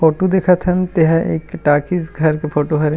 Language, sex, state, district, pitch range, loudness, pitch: Chhattisgarhi, male, Chhattisgarh, Rajnandgaon, 150-180 Hz, -16 LUFS, 165 Hz